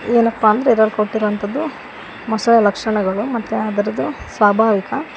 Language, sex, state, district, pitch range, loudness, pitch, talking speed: Kannada, female, Karnataka, Koppal, 210-235 Hz, -17 LUFS, 220 Hz, 115 wpm